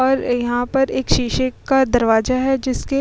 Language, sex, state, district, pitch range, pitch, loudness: Hindi, female, Uttar Pradesh, Muzaffarnagar, 225-265 Hz, 250 Hz, -18 LUFS